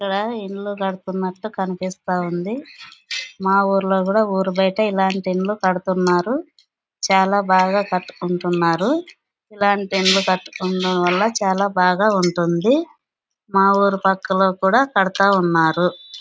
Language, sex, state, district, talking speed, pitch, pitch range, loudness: Telugu, female, Andhra Pradesh, Anantapur, 105 wpm, 190 Hz, 185-200 Hz, -19 LUFS